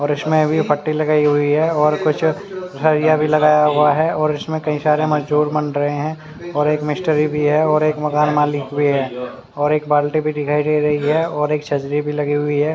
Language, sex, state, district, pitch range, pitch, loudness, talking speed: Hindi, male, Haryana, Charkhi Dadri, 145-155 Hz, 150 Hz, -17 LUFS, 220 wpm